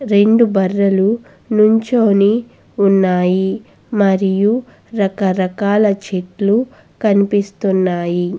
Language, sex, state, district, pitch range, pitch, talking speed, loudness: Telugu, female, Andhra Pradesh, Guntur, 190-215 Hz, 200 Hz, 55 wpm, -15 LUFS